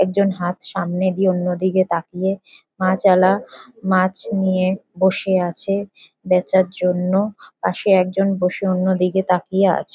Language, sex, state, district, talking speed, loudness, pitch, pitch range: Bengali, female, West Bengal, North 24 Parganas, 125 wpm, -19 LUFS, 185 Hz, 180-195 Hz